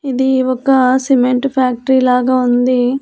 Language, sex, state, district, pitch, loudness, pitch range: Telugu, female, Andhra Pradesh, Annamaya, 255 Hz, -13 LUFS, 250-265 Hz